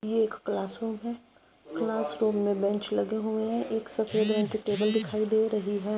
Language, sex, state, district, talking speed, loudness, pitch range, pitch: Hindi, female, Uttar Pradesh, Jyotiba Phule Nagar, 210 wpm, -29 LUFS, 210-220 Hz, 215 Hz